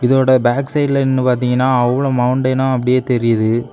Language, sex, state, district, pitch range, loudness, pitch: Tamil, male, Tamil Nadu, Kanyakumari, 125-130 Hz, -15 LUFS, 130 Hz